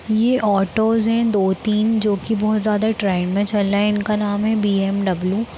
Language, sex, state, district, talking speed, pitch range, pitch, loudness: Hindi, female, Bihar, Darbhanga, 205 wpm, 200-220 Hz, 210 Hz, -18 LUFS